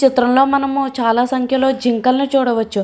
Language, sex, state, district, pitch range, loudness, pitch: Telugu, female, Andhra Pradesh, Srikakulam, 245-270 Hz, -15 LUFS, 260 Hz